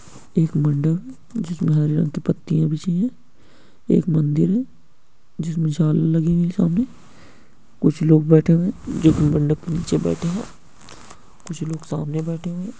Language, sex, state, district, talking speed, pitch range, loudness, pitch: Hindi, male, Jharkhand, Jamtara, 140 wpm, 155-175 Hz, -20 LUFS, 165 Hz